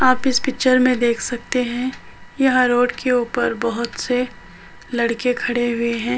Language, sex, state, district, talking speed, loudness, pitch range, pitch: Hindi, female, Uttar Pradesh, Budaun, 165 wpm, -19 LUFS, 240-255 Hz, 245 Hz